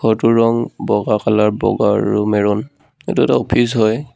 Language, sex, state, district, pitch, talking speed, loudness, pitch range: Assamese, male, Assam, Sonitpur, 110 Hz, 160 wpm, -16 LUFS, 105-115 Hz